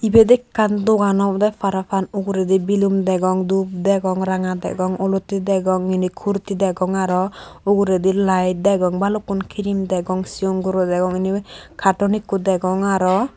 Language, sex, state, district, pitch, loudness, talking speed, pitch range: Chakma, female, Tripura, Dhalai, 195 Hz, -19 LUFS, 145 wpm, 185-200 Hz